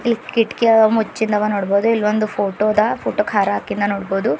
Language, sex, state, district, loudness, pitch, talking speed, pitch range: Kannada, female, Karnataka, Bidar, -17 LUFS, 210 Hz, 175 wpm, 200-225 Hz